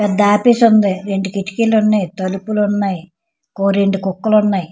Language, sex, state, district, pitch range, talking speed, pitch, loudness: Telugu, female, Andhra Pradesh, Srikakulam, 195-215 Hz, 165 wpm, 200 Hz, -15 LUFS